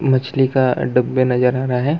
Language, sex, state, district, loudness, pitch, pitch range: Hindi, male, Chhattisgarh, Balrampur, -17 LUFS, 130 Hz, 125-130 Hz